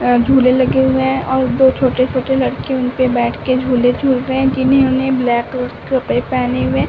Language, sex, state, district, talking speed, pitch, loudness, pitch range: Hindi, female, Uttar Pradesh, Varanasi, 200 wpm, 255 Hz, -15 LUFS, 240-260 Hz